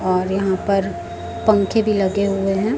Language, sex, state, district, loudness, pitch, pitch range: Hindi, female, Chhattisgarh, Raipur, -19 LUFS, 195 Hz, 185-200 Hz